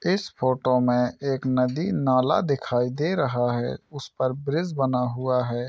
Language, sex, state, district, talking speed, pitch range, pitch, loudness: Hindi, male, Bihar, Saran, 170 wpm, 125-145 Hz, 130 Hz, -24 LUFS